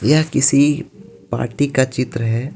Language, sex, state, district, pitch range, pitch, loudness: Hindi, male, Jharkhand, Ranchi, 125-150 Hz, 140 Hz, -17 LUFS